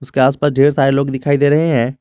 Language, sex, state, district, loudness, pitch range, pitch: Hindi, male, Jharkhand, Garhwa, -14 LUFS, 135-145 Hz, 140 Hz